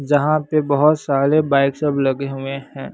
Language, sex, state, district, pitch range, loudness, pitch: Hindi, male, Bihar, West Champaran, 135-150 Hz, -18 LUFS, 140 Hz